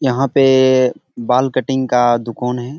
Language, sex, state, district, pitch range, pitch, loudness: Hindi, male, Bihar, Bhagalpur, 125-130 Hz, 130 Hz, -15 LUFS